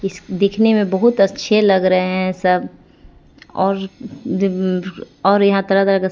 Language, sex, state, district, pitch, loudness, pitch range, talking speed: Hindi, female, Bihar, Kaimur, 195 Hz, -16 LUFS, 185-200 Hz, 155 wpm